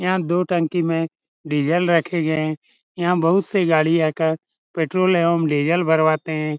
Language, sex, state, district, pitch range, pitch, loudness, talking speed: Hindi, male, Bihar, Supaul, 155-175 Hz, 165 Hz, -20 LUFS, 175 wpm